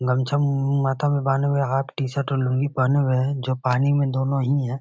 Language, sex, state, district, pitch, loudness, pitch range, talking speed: Hindi, male, Bihar, Muzaffarpur, 135 Hz, -22 LUFS, 130-140 Hz, 235 wpm